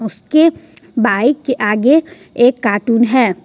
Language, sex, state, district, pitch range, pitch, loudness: Hindi, female, Jharkhand, Ranchi, 215-270 Hz, 245 Hz, -13 LUFS